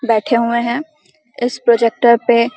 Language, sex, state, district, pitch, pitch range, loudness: Hindi, female, Bihar, Samastipur, 235 Hz, 235-245 Hz, -15 LUFS